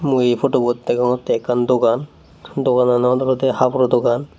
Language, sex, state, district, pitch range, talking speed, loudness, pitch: Chakma, male, Tripura, Unakoti, 120-130 Hz, 135 wpm, -17 LUFS, 125 Hz